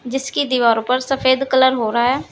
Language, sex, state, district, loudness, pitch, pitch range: Hindi, female, Uttar Pradesh, Saharanpur, -17 LUFS, 260 Hz, 245-270 Hz